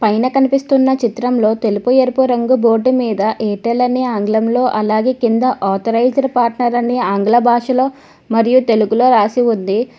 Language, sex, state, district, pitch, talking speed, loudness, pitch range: Telugu, female, Telangana, Hyderabad, 240 Hz, 150 wpm, -14 LUFS, 220-255 Hz